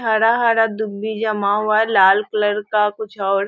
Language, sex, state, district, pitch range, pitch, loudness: Hindi, female, Bihar, Sitamarhi, 205-220 Hz, 215 Hz, -17 LUFS